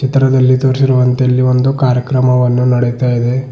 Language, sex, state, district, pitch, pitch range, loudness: Kannada, male, Karnataka, Bidar, 130 Hz, 125-130 Hz, -12 LUFS